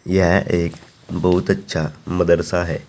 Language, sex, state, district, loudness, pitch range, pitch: Hindi, male, Uttar Pradesh, Saharanpur, -19 LUFS, 85-90 Hz, 90 Hz